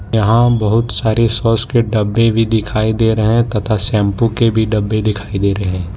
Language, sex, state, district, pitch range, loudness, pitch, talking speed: Hindi, male, Jharkhand, Ranchi, 105-115 Hz, -14 LUFS, 110 Hz, 200 wpm